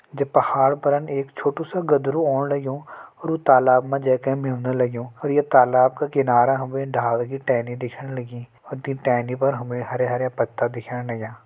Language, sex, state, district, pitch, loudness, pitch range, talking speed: Hindi, male, Uttarakhand, Tehri Garhwal, 130 Hz, -21 LUFS, 125-140 Hz, 195 wpm